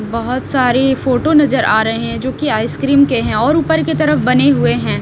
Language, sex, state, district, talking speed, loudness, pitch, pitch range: Hindi, female, Haryana, Rohtak, 225 wpm, -14 LUFS, 250 Hz, 215-270 Hz